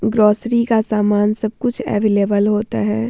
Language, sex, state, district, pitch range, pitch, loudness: Hindi, female, Bihar, Vaishali, 205-225 Hz, 210 Hz, -16 LUFS